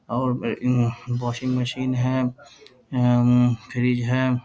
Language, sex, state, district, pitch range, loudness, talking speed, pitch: Hindi, male, Bihar, Jahanabad, 120-130 Hz, -23 LUFS, 135 wpm, 125 Hz